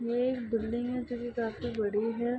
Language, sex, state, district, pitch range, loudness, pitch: Hindi, female, Bihar, Saharsa, 230-245 Hz, -33 LUFS, 240 Hz